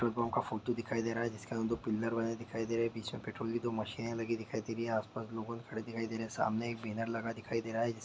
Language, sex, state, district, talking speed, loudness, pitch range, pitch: Hindi, male, Bihar, Sitamarhi, 335 wpm, -37 LUFS, 110-115 Hz, 115 Hz